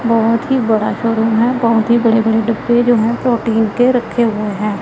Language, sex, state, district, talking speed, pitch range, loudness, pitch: Hindi, female, Punjab, Pathankot, 210 wpm, 225-240 Hz, -14 LUFS, 230 Hz